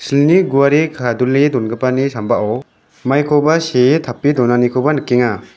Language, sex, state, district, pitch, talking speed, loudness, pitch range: Garo, male, Meghalaya, West Garo Hills, 130 Hz, 110 wpm, -14 LUFS, 120-145 Hz